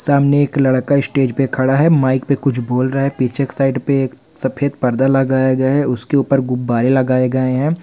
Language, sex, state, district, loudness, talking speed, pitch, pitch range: Hindi, male, Bihar, Saran, -16 LUFS, 220 wpm, 135 Hz, 130-140 Hz